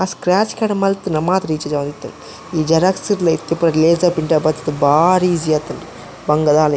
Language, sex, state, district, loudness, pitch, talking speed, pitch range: Tulu, male, Karnataka, Dakshina Kannada, -16 LUFS, 165 Hz, 170 wpm, 155-185 Hz